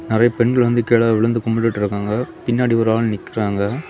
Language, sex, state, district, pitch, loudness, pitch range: Tamil, male, Tamil Nadu, Kanyakumari, 115 Hz, -18 LUFS, 110-120 Hz